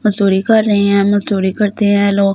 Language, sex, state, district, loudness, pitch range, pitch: Hindi, female, Delhi, New Delhi, -13 LUFS, 200-210 Hz, 200 Hz